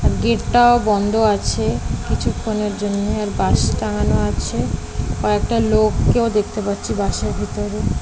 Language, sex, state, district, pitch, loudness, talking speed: Bengali, female, West Bengal, Kolkata, 200 Hz, -19 LUFS, 135 wpm